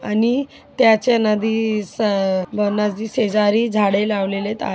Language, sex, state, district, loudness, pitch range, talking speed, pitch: Marathi, female, Maharashtra, Chandrapur, -18 LUFS, 205-225 Hz, 165 wpm, 215 Hz